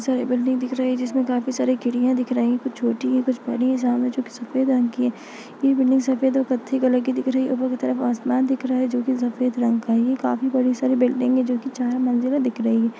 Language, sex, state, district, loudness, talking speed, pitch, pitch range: Hindi, female, Chhattisgarh, Bastar, -21 LUFS, 285 wpm, 255 Hz, 245-260 Hz